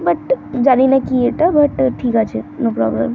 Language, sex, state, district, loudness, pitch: Bengali, female, West Bengal, North 24 Parganas, -15 LUFS, 245 Hz